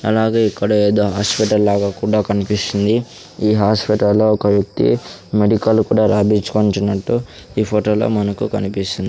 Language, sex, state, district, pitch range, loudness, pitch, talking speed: Telugu, male, Andhra Pradesh, Sri Satya Sai, 100-110 Hz, -16 LUFS, 105 Hz, 125 wpm